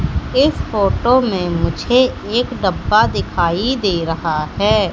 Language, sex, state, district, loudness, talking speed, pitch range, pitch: Hindi, female, Madhya Pradesh, Katni, -16 LUFS, 120 wpm, 170-250 Hz, 205 Hz